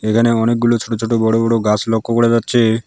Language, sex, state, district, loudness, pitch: Bengali, male, West Bengal, Alipurduar, -15 LUFS, 115 Hz